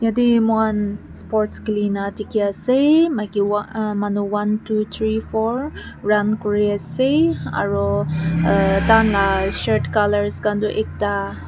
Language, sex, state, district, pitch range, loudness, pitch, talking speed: Nagamese, female, Nagaland, Kohima, 200-220 Hz, -19 LUFS, 210 Hz, 140 wpm